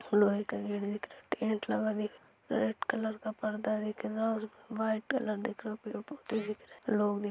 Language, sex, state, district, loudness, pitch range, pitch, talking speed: Hindi, female, Chhattisgarh, Kabirdham, -35 LUFS, 210-220 Hz, 215 Hz, 265 wpm